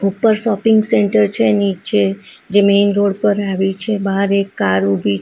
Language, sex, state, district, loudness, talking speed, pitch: Gujarati, female, Gujarat, Valsad, -15 LUFS, 195 wpm, 195 Hz